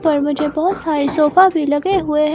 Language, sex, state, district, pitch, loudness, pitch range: Hindi, female, Himachal Pradesh, Shimla, 305 Hz, -16 LUFS, 300-340 Hz